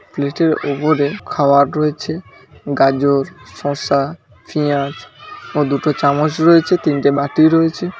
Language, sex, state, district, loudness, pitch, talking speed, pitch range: Bengali, male, West Bengal, Dakshin Dinajpur, -16 LUFS, 145 Hz, 105 wpm, 140-160 Hz